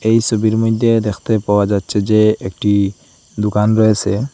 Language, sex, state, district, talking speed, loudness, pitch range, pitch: Bengali, male, Assam, Hailakandi, 140 wpm, -15 LUFS, 100-110 Hz, 110 Hz